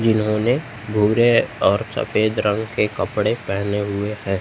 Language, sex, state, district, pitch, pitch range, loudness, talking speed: Hindi, male, Chhattisgarh, Raipur, 105 Hz, 105-110 Hz, -20 LUFS, 135 wpm